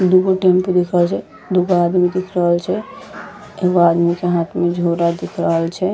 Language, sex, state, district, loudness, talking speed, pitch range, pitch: Angika, female, Bihar, Bhagalpur, -17 LUFS, 210 wpm, 175-185 Hz, 180 Hz